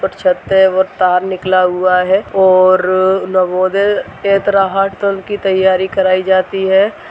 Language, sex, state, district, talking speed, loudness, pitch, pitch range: Hindi, male, Bihar, Jahanabad, 160 wpm, -13 LUFS, 190 Hz, 185-195 Hz